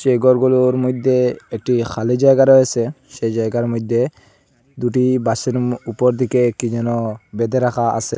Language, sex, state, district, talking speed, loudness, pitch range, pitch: Bengali, male, Assam, Hailakandi, 140 wpm, -17 LUFS, 115-130 Hz, 125 Hz